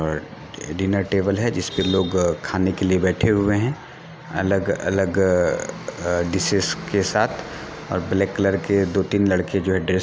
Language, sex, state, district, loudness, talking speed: Hindi, male, Jharkhand, Sahebganj, -21 LUFS, 180 wpm